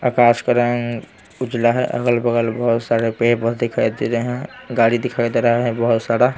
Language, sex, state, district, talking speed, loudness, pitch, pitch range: Hindi, male, Bihar, Patna, 195 wpm, -18 LUFS, 120 Hz, 115-120 Hz